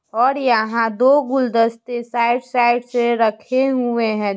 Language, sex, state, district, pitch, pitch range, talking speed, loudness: Hindi, male, Bihar, Muzaffarpur, 240 Hz, 230-255 Hz, 135 wpm, -18 LUFS